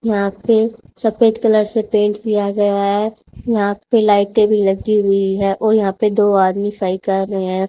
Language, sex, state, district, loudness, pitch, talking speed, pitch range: Hindi, female, Haryana, Rohtak, -16 LUFS, 205 Hz, 195 wpm, 195-220 Hz